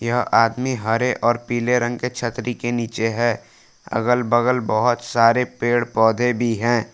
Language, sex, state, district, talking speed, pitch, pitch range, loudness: Hindi, male, Jharkhand, Palamu, 145 wpm, 120 Hz, 115-125 Hz, -20 LUFS